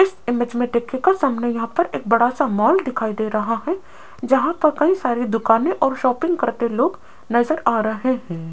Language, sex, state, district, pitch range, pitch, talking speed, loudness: Hindi, female, Rajasthan, Jaipur, 230-310 Hz, 245 Hz, 195 wpm, -20 LUFS